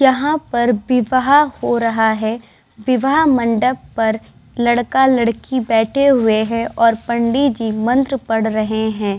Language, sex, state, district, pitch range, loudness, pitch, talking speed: Hindi, female, Bihar, Vaishali, 225-260 Hz, -16 LUFS, 235 Hz, 125 wpm